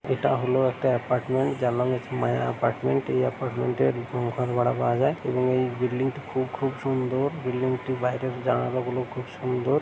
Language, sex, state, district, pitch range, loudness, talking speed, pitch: Bengali, male, West Bengal, Jhargram, 125-130 Hz, -26 LUFS, 155 wpm, 125 Hz